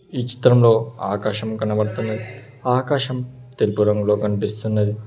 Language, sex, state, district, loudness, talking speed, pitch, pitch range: Telugu, male, Telangana, Hyderabad, -20 LUFS, 105 wpm, 110 Hz, 105-125 Hz